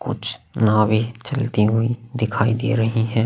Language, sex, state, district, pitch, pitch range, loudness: Hindi, male, Chhattisgarh, Sukma, 115 Hz, 110-120 Hz, -20 LUFS